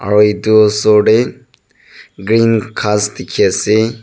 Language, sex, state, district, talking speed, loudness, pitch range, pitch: Nagamese, male, Nagaland, Dimapur, 105 wpm, -12 LUFS, 105-110 Hz, 105 Hz